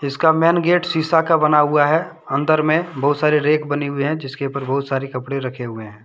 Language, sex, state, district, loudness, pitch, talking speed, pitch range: Hindi, male, Jharkhand, Deoghar, -18 LUFS, 145 Hz, 240 wpm, 140-160 Hz